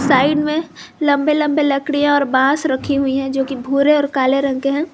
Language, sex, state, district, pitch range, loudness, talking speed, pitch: Hindi, female, Jharkhand, Garhwa, 270-300 Hz, -16 LUFS, 220 wpm, 280 Hz